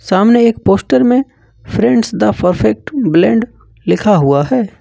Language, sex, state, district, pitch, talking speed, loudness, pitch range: Hindi, male, Jharkhand, Ranchi, 215 Hz, 135 wpm, -12 LUFS, 180-240 Hz